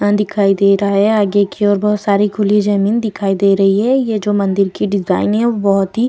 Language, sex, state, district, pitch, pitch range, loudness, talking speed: Hindi, female, Bihar, Vaishali, 205 Hz, 200-210 Hz, -14 LUFS, 255 wpm